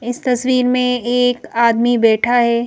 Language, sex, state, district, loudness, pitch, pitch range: Hindi, female, Madhya Pradesh, Bhopal, -15 LUFS, 245 Hz, 235-250 Hz